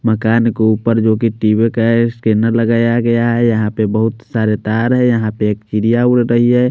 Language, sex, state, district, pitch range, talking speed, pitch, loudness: Hindi, male, Chandigarh, Chandigarh, 110-120 Hz, 240 wpm, 115 Hz, -14 LUFS